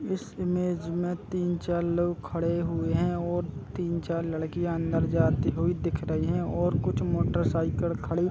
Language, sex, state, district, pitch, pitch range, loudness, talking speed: Hindi, male, Chhattisgarh, Raigarh, 170 Hz, 165-175 Hz, -28 LUFS, 175 wpm